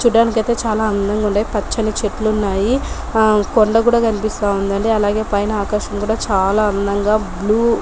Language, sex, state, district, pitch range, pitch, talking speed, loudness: Telugu, female, Telangana, Nalgonda, 205-225 Hz, 215 Hz, 155 wpm, -17 LUFS